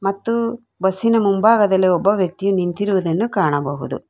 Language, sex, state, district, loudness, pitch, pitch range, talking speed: Kannada, female, Karnataka, Bangalore, -18 LUFS, 195 Hz, 185-220 Hz, 100 wpm